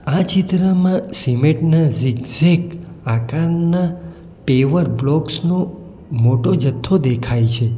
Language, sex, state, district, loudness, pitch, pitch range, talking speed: Gujarati, male, Gujarat, Valsad, -16 LUFS, 160 Hz, 130-175 Hz, 100 wpm